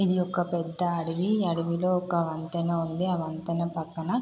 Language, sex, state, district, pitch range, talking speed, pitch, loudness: Telugu, female, Andhra Pradesh, Guntur, 165-180 Hz, 215 wpm, 170 Hz, -28 LUFS